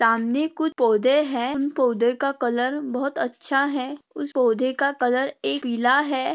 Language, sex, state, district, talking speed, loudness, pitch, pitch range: Hindi, female, Telangana, Nalgonda, 170 wpm, -23 LUFS, 260 Hz, 245-280 Hz